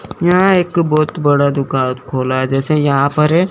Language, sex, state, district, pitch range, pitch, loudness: Hindi, male, Chandigarh, Chandigarh, 135-170 Hz, 150 Hz, -14 LUFS